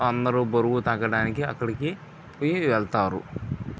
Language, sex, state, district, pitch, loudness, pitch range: Telugu, male, Andhra Pradesh, Visakhapatnam, 120 Hz, -25 LUFS, 110-145 Hz